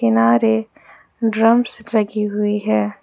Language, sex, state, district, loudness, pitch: Hindi, female, Jharkhand, Ranchi, -18 LUFS, 210 Hz